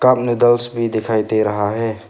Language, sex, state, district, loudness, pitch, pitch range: Hindi, male, Arunachal Pradesh, Papum Pare, -17 LUFS, 115 Hz, 110-120 Hz